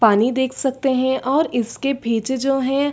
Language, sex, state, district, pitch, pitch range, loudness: Hindi, female, Chhattisgarh, Sarguja, 260 Hz, 245-275 Hz, -20 LUFS